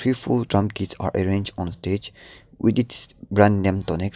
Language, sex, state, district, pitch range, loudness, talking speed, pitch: English, male, Nagaland, Dimapur, 95-105 Hz, -22 LUFS, 200 wpm, 100 Hz